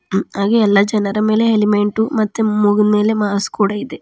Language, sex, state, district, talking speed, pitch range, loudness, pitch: Kannada, female, Karnataka, Bidar, 165 wpm, 205-215 Hz, -15 LUFS, 210 Hz